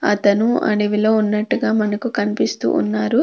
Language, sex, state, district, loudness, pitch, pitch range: Telugu, female, Andhra Pradesh, Krishna, -18 LUFS, 210 Hz, 205-215 Hz